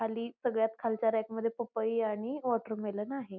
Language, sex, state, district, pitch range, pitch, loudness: Marathi, female, Maharashtra, Pune, 220-235 Hz, 225 Hz, -33 LUFS